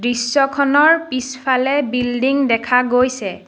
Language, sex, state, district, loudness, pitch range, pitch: Assamese, female, Assam, Sonitpur, -16 LUFS, 245-275 Hz, 255 Hz